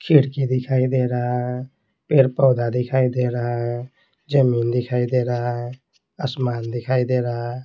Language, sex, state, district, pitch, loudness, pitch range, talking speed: Hindi, male, Bihar, Patna, 125 Hz, -21 LUFS, 120-130 Hz, 165 wpm